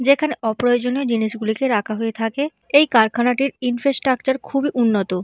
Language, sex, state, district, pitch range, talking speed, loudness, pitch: Bengali, female, West Bengal, Purulia, 225-275 Hz, 150 wpm, -19 LUFS, 245 Hz